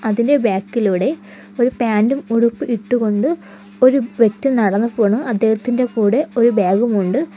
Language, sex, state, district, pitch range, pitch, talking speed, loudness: Malayalam, female, Kerala, Kollam, 210-250 Hz, 230 Hz, 130 wpm, -16 LUFS